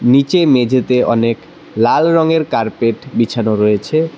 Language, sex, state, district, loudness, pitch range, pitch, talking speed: Bengali, male, West Bengal, Cooch Behar, -14 LUFS, 115-155 Hz, 125 Hz, 115 wpm